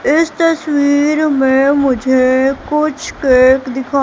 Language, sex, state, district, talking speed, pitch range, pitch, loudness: Hindi, female, Madhya Pradesh, Katni, 105 wpm, 260-300 Hz, 280 Hz, -13 LUFS